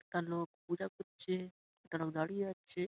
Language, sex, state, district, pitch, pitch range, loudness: Bengali, male, West Bengal, Malda, 180 Hz, 170-190 Hz, -41 LUFS